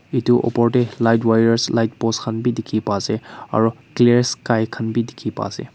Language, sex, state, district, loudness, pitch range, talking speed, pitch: Nagamese, male, Nagaland, Kohima, -19 LUFS, 115-120 Hz, 210 wpm, 115 Hz